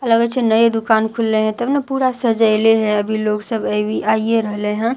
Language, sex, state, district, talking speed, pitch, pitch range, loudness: Maithili, female, Bihar, Katihar, 215 wpm, 225 Hz, 215-230 Hz, -17 LUFS